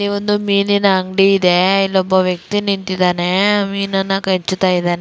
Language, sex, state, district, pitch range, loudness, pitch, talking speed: Kannada, female, Karnataka, Dakshina Kannada, 185-200 Hz, -15 LUFS, 195 Hz, 120 wpm